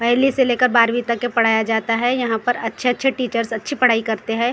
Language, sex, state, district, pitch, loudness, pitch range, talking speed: Hindi, female, Maharashtra, Gondia, 235 Hz, -18 LUFS, 225-250 Hz, 265 wpm